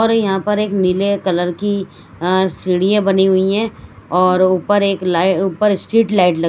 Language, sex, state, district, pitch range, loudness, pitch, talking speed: Hindi, female, Chandigarh, Chandigarh, 180-205 Hz, -15 LUFS, 190 Hz, 165 wpm